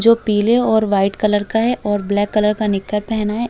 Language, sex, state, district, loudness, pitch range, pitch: Hindi, female, Uttar Pradesh, Hamirpur, -17 LUFS, 205-225 Hz, 210 Hz